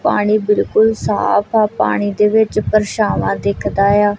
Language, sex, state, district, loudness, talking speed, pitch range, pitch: Punjabi, female, Punjab, Kapurthala, -15 LUFS, 155 wpm, 205-215 Hz, 210 Hz